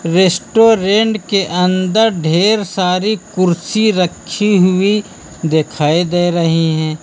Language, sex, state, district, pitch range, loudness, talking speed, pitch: Hindi, male, Uttar Pradesh, Lucknow, 170-210 Hz, -14 LUFS, 100 wpm, 185 Hz